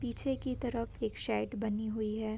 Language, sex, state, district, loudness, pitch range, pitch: Hindi, female, Uttar Pradesh, Gorakhpur, -35 LUFS, 215-250 Hz, 220 Hz